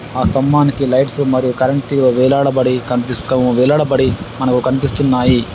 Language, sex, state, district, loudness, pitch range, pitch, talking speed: Telugu, male, Telangana, Adilabad, -14 LUFS, 125-135 Hz, 130 Hz, 120 wpm